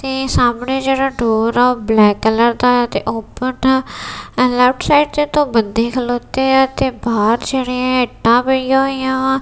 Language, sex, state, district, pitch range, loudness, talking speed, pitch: Punjabi, female, Punjab, Kapurthala, 235-265 Hz, -15 LUFS, 170 wpm, 250 Hz